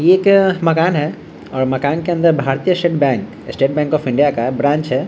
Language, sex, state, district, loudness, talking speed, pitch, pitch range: Hindi, male, Bihar, Vaishali, -15 LUFS, 210 wpm, 150 Hz, 135-170 Hz